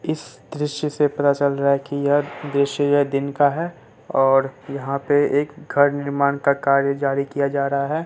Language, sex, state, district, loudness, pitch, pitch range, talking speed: Hindi, male, Bihar, Katihar, -20 LUFS, 140 Hz, 140-145 Hz, 200 wpm